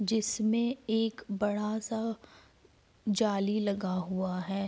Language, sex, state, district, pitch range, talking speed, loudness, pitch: Hindi, female, Uttar Pradesh, Jalaun, 200-225 Hz, 105 wpm, -32 LUFS, 210 Hz